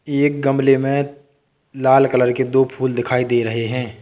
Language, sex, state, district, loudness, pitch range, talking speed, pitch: Hindi, male, Uttar Pradesh, Lalitpur, -17 LUFS, 125-140 Hz, 180 wpm, 135 Hz